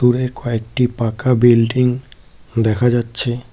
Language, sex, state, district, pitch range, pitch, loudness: Bengali, male, West Bengal, Cooch Behar, 115-125 Hz, 120 Hz, -17 LUFS